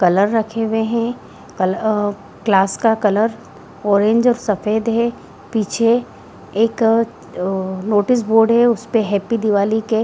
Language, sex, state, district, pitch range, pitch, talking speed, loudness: Hindi, female, Bihar, Jahanabad, 205-230 Hz, 220 Hz, 140 wpm, -17 LUFS